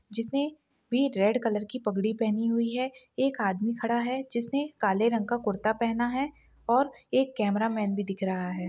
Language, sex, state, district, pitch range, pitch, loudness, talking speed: Hindi, female, Maharashtra, Dhule, 210-255 Hz, 230 Hz, -29 LUFS, 185 wpm